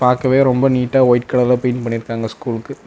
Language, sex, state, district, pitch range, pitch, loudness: Tamil, male, Tamil Nadu, Namakkal, 120-130 Hz, 125 Hz, -16 LUFS